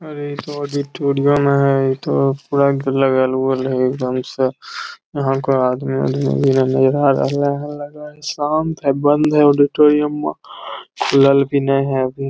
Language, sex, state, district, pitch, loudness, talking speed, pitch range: Magahi, male, Bihar, Lakhisarai, 140 Hz, -17 LUFS, 130 wpm, 135-145 Hz